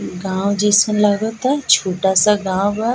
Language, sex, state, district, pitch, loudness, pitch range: Bhojpuri, female, Bihar, East Champaran, 205 Hz, -16 LUFS, 190-215 Hz